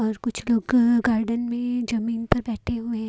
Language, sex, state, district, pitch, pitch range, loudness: Hindi, female, Haryana, Jhajjar, 235 Hz, 225-240 Hz, -23 LUFS